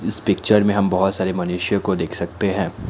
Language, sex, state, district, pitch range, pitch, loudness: Hindi, male, Assam, Kamrup Metropolitan, 90-100 Hz, 95 Hz, -20 LUFS